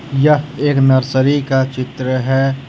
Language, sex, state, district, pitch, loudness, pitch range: Hindi, male, Jharkhand, Ranchi, 135 Hz, -15 LUFS, 130-145 Hz